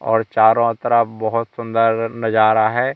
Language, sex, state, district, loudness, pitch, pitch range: Hindi, male, Madhya Pradesh, Katni, -17 LUFS, 115 Hz, 110-115 Hz